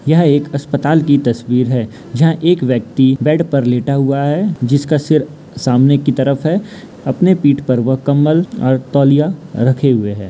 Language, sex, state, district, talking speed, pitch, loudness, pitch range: Hindi, male, Bihar, Gaya, 175 wpm, 140 Hz, -14 LUFS, 130-155 Hz